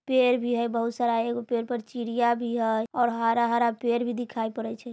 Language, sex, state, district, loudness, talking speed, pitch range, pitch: Bajjika, female, Bihar, Vaishali, -26 LUFS, 220 wpm, 230-240 Hz, 235 Hz